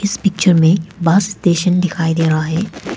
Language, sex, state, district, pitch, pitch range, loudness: Hindi, female, Arunachal Pradesh, Papum Pare, 175 Hz, 165-190 Hz, -15 LUFS